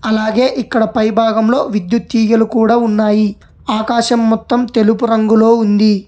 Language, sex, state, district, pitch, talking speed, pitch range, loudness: Telugu, male, Telangana, Hyderabad, 225 Hz, 120 wpm, 220-235 Hz, -13 LUFS